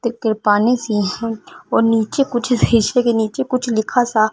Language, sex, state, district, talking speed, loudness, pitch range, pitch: Hindi, female, Punjab, Fazilka, 180 wpm, -17 LUFS, 220-245 Hz, 230 Hz